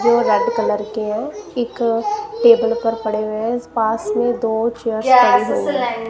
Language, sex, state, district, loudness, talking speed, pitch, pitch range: Hindi, female, Punjab, Kapurthala, -17 LUFS, 150 wpm, 235 Hz, 220-245 Hz